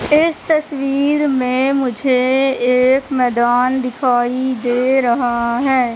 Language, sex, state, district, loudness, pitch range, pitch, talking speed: Hindi, female, Madhya Pradesh, Katni, -16 LUFS, 245-275 Hz, 255 Hz, 100 wpm